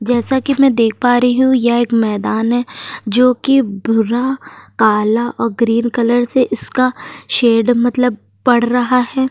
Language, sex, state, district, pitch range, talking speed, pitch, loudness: Hindi, female, Uttar Pradesh, Jyotiba Phule Nagar, 230-250 Hz, 160 wpm, 240 Hz, -14 LUFS